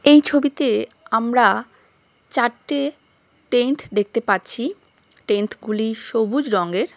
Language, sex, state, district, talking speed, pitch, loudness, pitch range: Bengali, female, West Bengal, Jhargram, 95 wpm, 240 Hz, -20 LUFS, 215-285 Hz